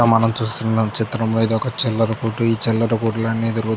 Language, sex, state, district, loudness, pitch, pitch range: Telugu, male, Andhra Pradesh, Chittoor, -19 LUFS, 115 Hz, 110-115 Hz